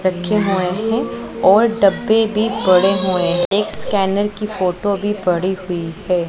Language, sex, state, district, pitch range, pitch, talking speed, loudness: Hindi, female, Punjab, Pathankot, 180-210 Hz, 195 Hz, 160 wpm, -17 LUFS